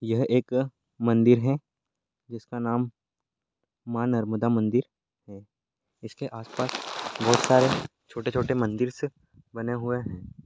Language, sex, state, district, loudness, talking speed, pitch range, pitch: Hindi, male, Chhattisgarh, Balrampur, -26 LUFS, 110 wpm, 115-130 Hz, 120 Hz